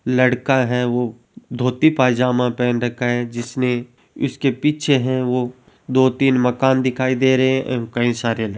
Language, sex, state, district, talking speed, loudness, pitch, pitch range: Hindi, male, Rajasthan, Churu, 170 wpm, -19 LUFS, 125 Hz, 120-130 Hz